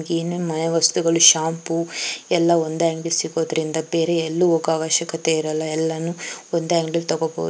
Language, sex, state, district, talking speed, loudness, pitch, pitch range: Kannada, female, Karnataka, Chamarajanagar, 130 wpm, -20 LUFS, 165 Hz, 160-170 Hz